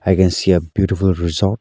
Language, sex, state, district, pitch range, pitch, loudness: English, male, Arunachal Pradesh, Lower Dibang Valley, 90-95 Hz, 95 Hz, -16 LUFS